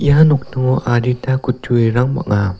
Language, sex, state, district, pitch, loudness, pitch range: Garo, male, Meghalaya, West Garo Hills, 125 Hz, -16 LUFS, 120-135 Hz